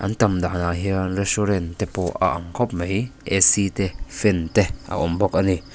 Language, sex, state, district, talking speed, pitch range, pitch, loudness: Mizo, male, Mizoram, Aizawl, 200 wpm, 90-100 Hz, 95 Hz, -21 LUFS